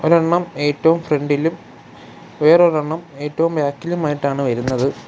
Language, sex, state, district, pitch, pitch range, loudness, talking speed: Malayalam, male, Kerala, Kollam, 150 Hz, 140-165 Hz, -18 LUFS, 85 wpm